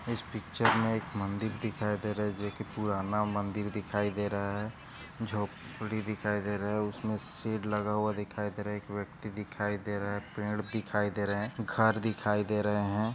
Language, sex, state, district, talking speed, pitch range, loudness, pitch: Hindi, male, Maharashtra, Nagpur, 205 wpm, 105-110 Hz, -33 LUFS, 105 Hz